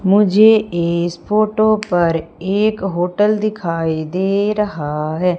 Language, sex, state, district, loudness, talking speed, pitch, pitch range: Hindi, female, Madhya Pradesh, Umaria, -16 LUFS, 110 wpm, 190 Hz, 170-210 Hz